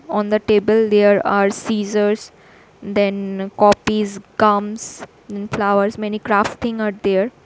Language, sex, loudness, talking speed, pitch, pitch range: English, female, -18 LUFS, 120 wpm, 205 Hz, 200-215 Hz